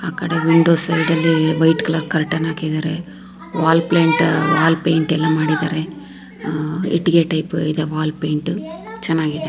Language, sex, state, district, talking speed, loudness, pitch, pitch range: Kannada, female, Karnataka, Raichur, 115 wpm, -17 LUFS, 160 Hz, 155-165 Hz